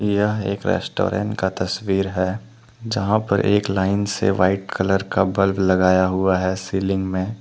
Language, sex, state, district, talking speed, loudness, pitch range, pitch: Hindi, male, Jharkhand, Deoghar, 145 wpm, -20 LUFS, 95-105 Hz, 95 Hz